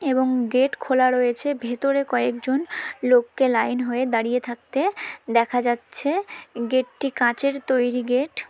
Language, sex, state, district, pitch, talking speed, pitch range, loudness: Bengali, female, West Bengal, Dakshin Dinajpur, 255 Hz, 135 wpm, 245-275 Hz, -22 LUFS